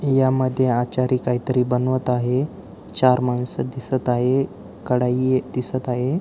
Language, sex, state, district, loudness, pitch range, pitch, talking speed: Marathi, male, Maharashtra, Aurangabad, -21 LUFS, 125-130 Hz, 125 Hz, 125 wpm